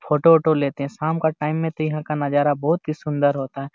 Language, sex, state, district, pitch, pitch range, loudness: Hindi, male, Jharkhand, Jamtara, 150 Hz, 145-160 Hz, -21 LUFS